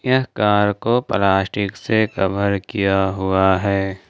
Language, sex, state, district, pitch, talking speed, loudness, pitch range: Hindi, male, Jharkhand, Ranchi, 100 Hz, 130 wpm, -18 LUFS, 95-105 Hz